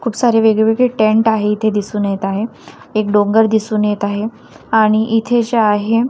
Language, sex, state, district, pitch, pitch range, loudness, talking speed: Marathi, female, Maharashtra, Washim, 220 Hz, 210-225 Hz, -15 LUFS, 175 wpm